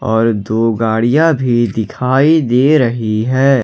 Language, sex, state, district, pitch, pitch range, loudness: Hindi, male, Jharkhand, Ranchi, 120 Hz, 110-135 Hz, -13 LUFS